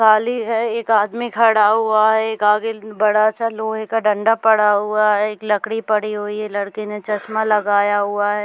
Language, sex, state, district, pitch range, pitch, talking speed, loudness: Hindi, female, Chhattisgarh, Bastar, 210-220 Hz, 215 Hz, 200 wpm, -17 LUFS